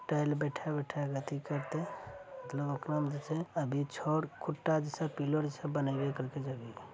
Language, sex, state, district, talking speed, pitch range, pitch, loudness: Angika, male, Bihar, Araria, 145 wpm, 140-155 Hz, 145 Hz, -36 LUFS